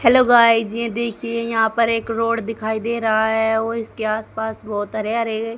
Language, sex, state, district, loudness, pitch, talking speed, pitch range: Hindi, female, Haryana, Charkhi Dadri, -19 LUFS, 225 Hz, 195 wpm, 220-230 Hz